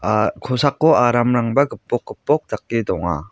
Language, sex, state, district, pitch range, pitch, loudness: Garo, male, Meghalaya, West Garo Hills, 105-140 Hz, 120 Hz, -19 LUFS